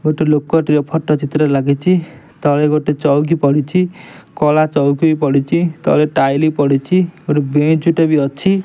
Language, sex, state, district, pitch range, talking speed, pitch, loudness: Odia, male, Odisha, Nuapada, 145-165 Hz, 130 wpm, 150 Hz, -14 LUFS